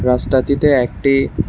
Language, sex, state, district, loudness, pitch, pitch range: Bengali, male, Tripura, West Tripura, -15 LUFS, 130 Hz, 125-140 Hz